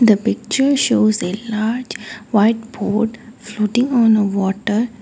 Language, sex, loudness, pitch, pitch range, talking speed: English, female, -17 LUFS, 220 Hz, 210-230 Hz, 130 wpm